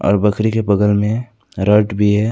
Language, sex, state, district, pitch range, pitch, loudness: Hindi, male, West Bengal, Alipurduar, 100-105 Hz, 105 Hz, -16 LUFS